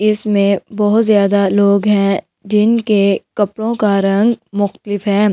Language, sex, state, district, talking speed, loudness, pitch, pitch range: Hindi, female, Delhi, New Delhi, 125 wpm, -14 LUFS, 205 Hz, 200-215 Hz